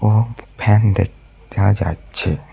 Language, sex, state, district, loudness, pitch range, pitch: Bengali, male, West Bengal, Cooch Behar, -18 LUFS, 100-115 Hz, 105 Hz